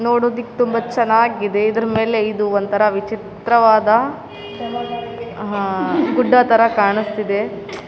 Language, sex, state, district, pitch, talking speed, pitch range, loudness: Kannada, female, Karnataka, Raichur, 225 Hz, 100 wpm, 210-235 Hz, -17 LUFS